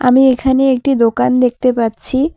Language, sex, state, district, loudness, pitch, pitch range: Bengali, female, West Bengal, Alipurduar, -13 LUFS, 255 Hz, 245-265 Hz